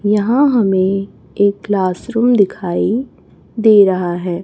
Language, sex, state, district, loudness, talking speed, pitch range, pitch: Hindi, female, Chhattisgarh, Raipur, -14 LUFS, 120 wpm, 185-225 Hz, 200 Hz